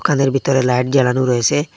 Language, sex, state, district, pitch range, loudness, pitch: Bengali, male, Assam, Hailakandi, 125-140 Hz, -16 LUFS, 135 Hz